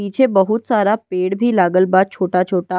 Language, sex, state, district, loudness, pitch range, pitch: Bhojpuri, female, Uttar Pradesh, Ghazipur, -16 LUFS, 185-215 Hz, 190 Hz